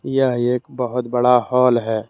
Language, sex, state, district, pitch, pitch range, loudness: Hindi, male, Jharkhand, Deoghar, 125 Hz, 120-125 Hz, -18 LUFS